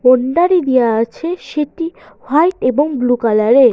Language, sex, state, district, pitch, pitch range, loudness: Bengali, female, West Bengal, Jalpaiguri, 265 Hz, 250-330 Hz, -15 LUFS